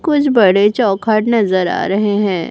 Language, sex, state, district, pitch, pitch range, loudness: Hindi, female, Chhattisgarh, Raipur, 205 Hz, 195-230 Hz, -14 LUFS